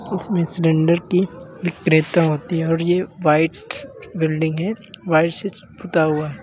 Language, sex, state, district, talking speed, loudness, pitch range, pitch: Hindi, male, Uttar Pradesh, Lalitpur, 150 wpm, -19 LUFS, 160-185 Hz, 170 Hz